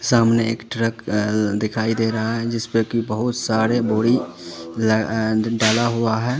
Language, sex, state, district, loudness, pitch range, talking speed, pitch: Hindi, male, Uttar Pradesh, Lalitpur, -20 LUFS, 110-115 Hz, 140 wpm, 115 Hz